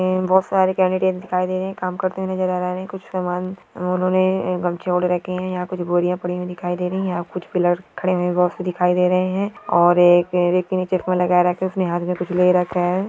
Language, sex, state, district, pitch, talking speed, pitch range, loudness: Hindi, female, Uttar Pradesh, Deoria, 180 Hz, 235 wpm, 180-185 Hz, -20 LUFS